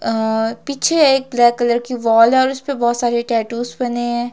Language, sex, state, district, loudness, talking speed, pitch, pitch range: Hindi, female, Himachal Pradesh, Shimla, -16 LUFS, 195 wpm, 240 Hz, 230-260 Hz